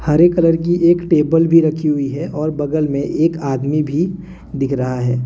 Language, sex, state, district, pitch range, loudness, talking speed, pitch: Hindi, male, Jharkhand, Deoghar, 140-165 Hz, -16 LUFS, 205 wpm, 155 Hz